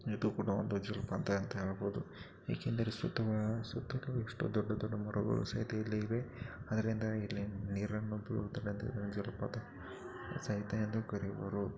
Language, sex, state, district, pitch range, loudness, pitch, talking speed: Kannada, male, Karnataka, Chamarajanagar, 100-115 Hz, -39 LUFS, 105 Hz, 115 wpm